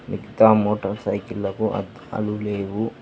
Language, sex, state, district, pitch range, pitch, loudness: Telugu, male, Telangana, Hyderabad, 100-110 Hz, 105 Hz, -22 LUFS